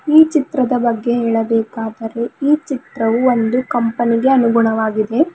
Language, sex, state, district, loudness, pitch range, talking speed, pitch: Kannada, female, Karnataka, Bidar, -16 LUFS, 225-270 Hz, 100 wpm, 240 Hz